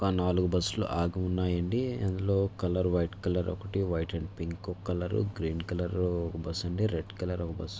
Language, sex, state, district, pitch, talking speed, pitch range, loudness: Telugu, male, Andhra Pradesh, Visakhapatnam, 90 Hz, 210 wpm, 85-95 Hz, -31 LUFS